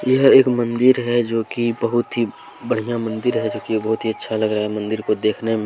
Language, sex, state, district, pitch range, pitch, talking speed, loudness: Hindi, male, Jharkhand, Deoghar, 110-120 Hz, 115 Hz, 245 wpm, -19 LUFS